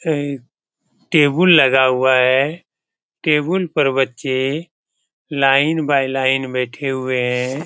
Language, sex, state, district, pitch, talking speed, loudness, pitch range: Hindi, male, Bihar, Jamui, 135 Hz, 115 wpm, -16 LUFS, 130-155 Hz